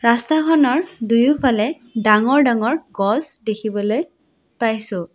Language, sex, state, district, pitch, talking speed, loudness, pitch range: Assamese, female, Assam, Sonitpur, 235 Hz, 80 wpm, -18 LUFS, 215-300 Hz